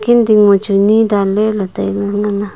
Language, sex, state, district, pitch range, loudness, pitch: Wancho, female, Arunachal Pradesh, Longding, 200-215 Hz, -13 LUFS, 205 Hz